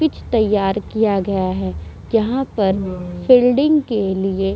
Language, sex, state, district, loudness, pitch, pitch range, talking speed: Hindi, female, Uttar Pradesh, Muzaffarnagar, -18 LUFS, 200 Hz, 190-235 Hz, 145 wpm